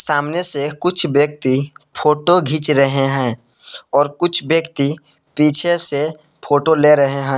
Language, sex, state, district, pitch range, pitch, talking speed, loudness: Hindi, male, Jharkhand, Palamu, 140-160 Hz, 150 Hz, 140 wpm, -15 LUFS